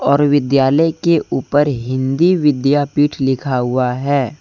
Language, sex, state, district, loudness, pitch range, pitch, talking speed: Hindi, male, Jharkhand, Deoghar, -15 LUFS, 130-145 Hz, 140 Hz, 120 wpm